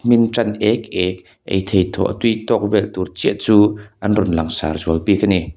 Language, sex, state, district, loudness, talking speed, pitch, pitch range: Mizo, male, Mizoram, Aizawl, -18 LUFS, 215 wpm, 100 Hz, 90-105 Hz